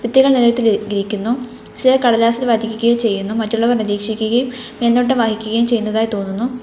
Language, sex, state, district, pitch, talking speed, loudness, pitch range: Malayalam, female, Kerala, Kollam, 230 Hz, 110 wpm, -16 LUFS, 220-240 Hz